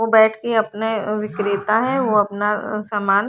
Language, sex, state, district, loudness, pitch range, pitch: Hindi, female, Chandigarh, Chandigarh, -19 LUFS, 210-220 Hz, 215 Hz